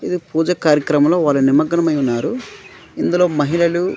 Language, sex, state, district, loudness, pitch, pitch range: Telugu, male, Andhra Pradesh, Manyam, -16 LUFS, 160 Hz, 145-170 Hz